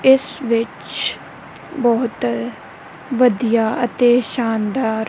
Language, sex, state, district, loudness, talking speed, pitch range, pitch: Punjabi, female, Punjab, Kapurthala, -18 LUFS, 70 wpm, 220-245 Hz, 235 Hz